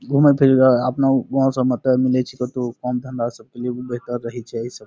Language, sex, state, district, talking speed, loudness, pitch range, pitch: Maithili, male, Bihar, Saharsa, 260 wpm, -19 LUFS, 120-130 Hz, 125 Hz